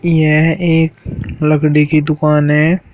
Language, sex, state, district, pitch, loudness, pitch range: Hindi, male, Uttar Pradesh, Shamli, 155 Hz, -12 LUFS, 150-160 Hz